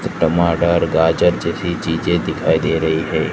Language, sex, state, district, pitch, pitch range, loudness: Hindi, male, Gujarat, Gandhinagar, 85 Hz, 80-85 Hz, -17 LUFS